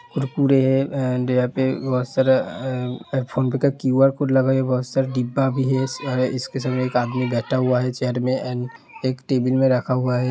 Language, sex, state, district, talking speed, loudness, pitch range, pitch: Hindi, male, Uttar Pradesh, Hamirpur, 155 wpm, -21 LUFS, 125-135 Hz, 130 Hz